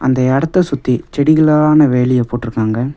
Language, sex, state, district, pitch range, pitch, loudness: Tamil, male, Tamil Nadu, Nilgiris, 125-150 Hz, 130 Hz, -13 LUFS